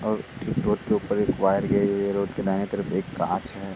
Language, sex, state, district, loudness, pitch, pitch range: Hindi, male, Uttar Pradesh, Muzaffarnagar, -25 LUFS, 100 Hz, 95-100 Hz